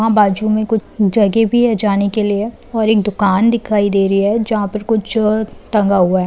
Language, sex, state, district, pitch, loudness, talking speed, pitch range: Hindi, female, Bihar, Saran, 215 Hz, -15 LUFS, 220 wpm, 200-225 Hz